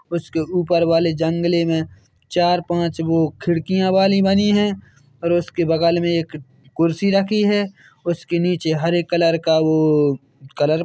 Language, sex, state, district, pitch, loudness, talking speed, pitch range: Hindi, male, Chhattisgarh, Bilaspur, 170 Hz, -19 LUFS, 155 wpm, 160-175 Hz